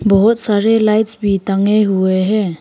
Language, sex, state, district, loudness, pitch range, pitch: Hindi, female, Arunachal Pradesh, Papum Pare, -14 LUFS, 195-215 Hz, 205 Hz